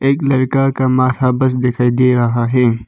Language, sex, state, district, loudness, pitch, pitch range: Hindi, male, Arunachal Pradesh, Papum Pare, -14 LUFS, 130 Hz, 125-130 Hz